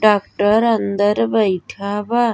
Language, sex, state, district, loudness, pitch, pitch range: Bhojpuri, female, Uttar Pradesh, Gorakhpur, -17 LUFS, 210 Hz, 200-230 Hz